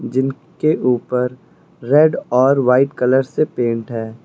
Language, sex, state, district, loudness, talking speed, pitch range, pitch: Hindi, male, Uttar Pradesh, Lucknow, -17 LUFS, 125 wpm, 125-140 Hz, 125 Hz